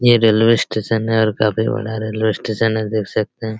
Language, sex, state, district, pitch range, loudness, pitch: Hindi, male, Chhattisgarh, Raigarh, 110-115 Hz, -17 LUFS, 110 Hz